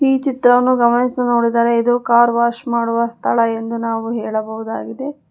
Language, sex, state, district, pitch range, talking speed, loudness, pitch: Kannada, female, Karnataka, Bangalore, 230-245 Hz, 135 wpm, -16 LUFS, 235 Hz